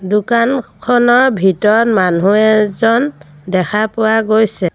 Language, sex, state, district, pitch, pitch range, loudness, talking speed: Assamese, female, Assam, Sonitpur, 215 Hz, 190-235 Hz, -13 LUFS, 90 wpm